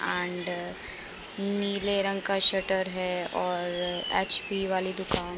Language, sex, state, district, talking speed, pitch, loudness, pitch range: Hindi, female, Uttar Pradesh, Budaun, 120 wpm, 190 Hz, -28 LUFS, 180-195 Hz